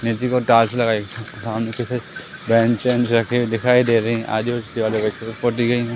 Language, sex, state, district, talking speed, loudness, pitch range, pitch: Hindi, male, Madhya Pradesh, Umaria, 50 wpm, -19 LUFS, 115-120 Hz, 115 Hz